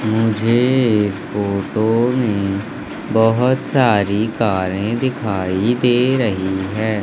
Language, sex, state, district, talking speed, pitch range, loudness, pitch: Hindi, male, Madhya Pradesh, Katni, 95 wpm, 100-120 Hz, -17 LUFS, 110 Hz